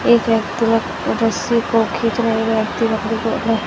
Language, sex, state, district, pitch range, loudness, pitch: Hindi, female, Chhattisgarh, Raipur, 225-230 Hz, -18 LUFS, 225 Hz